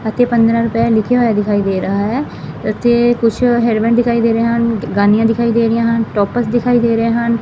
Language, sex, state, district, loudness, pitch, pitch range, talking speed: Punjabi, female, Punjab, Fazilka, -14 LUFS, 230 Hz, 225-235 Hz, 220 wpm